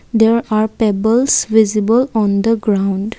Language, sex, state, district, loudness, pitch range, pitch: English, female, Assam, Kamrup Metropolitan, -14 LUFS, 210-225 Hz, 220 Hz